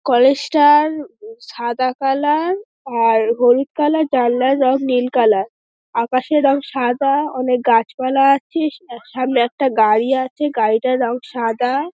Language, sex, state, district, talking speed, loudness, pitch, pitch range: Bengali, female, West Bengal, Dakshin Dinajpur, 140 wpm, -16 LUFS, 260 Hz, 245-290 Hz